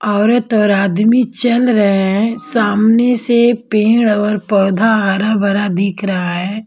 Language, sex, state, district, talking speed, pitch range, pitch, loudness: Hindi, female, Bihar, Kaimur, 145 wpm, 200-230 Hz, 210 Hz, -13 LUFS